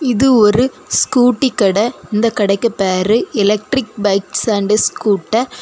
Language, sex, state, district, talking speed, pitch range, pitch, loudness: Tamil, female, Tamil Nadu, Kanyakumari, 130 wpm, 205-245 Hz, 215 Hz, -14 LUFS